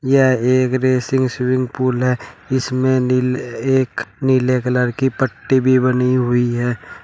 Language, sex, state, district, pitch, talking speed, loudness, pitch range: Hindi, male, Uttar Pradesh, Shamli, 130 Hz, 145 wpm, -17 LUFS, 125-130 Hz